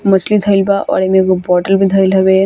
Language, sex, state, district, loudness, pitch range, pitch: Bhojpuri, female, Bihar, Gopalganj, -12 LUFS, 190-200 Hz, 195 Hz